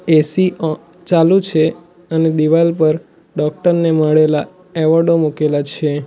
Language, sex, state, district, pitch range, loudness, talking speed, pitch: Gujarati, male, Gujarat, Valsad, 155-170 Hz, -15 LUFS, 130 wpm, 160 Hz